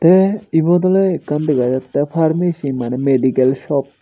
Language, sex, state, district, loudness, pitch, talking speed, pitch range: Chakma, male, Tripura, Unakoti, -16 LUFS, 150 Hz, 150 wpm, 130-175 Hz